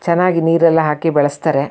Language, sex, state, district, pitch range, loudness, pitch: Kannada, female, Karnataka, Shimoga, 150-170 Hz, -14 LUFS, 165 Hz